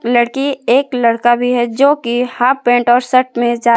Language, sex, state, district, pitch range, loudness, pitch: Hindi, female, Jharkhand, Palamu, 240-255 Hz, -13 LUFS, 245 Hz